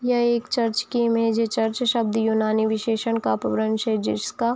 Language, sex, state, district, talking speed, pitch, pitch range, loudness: Hindi, female, Chhattisgarh, Raigarh, 185 wpm, 225 Hz, 220-235 Hz, -22 LUFS